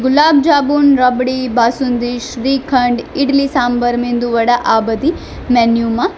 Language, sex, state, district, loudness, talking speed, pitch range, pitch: Gujarati, female, Gujarat, Valsad, -13 LUFS, 115 wpm, 240-275 Hz, 250 Hz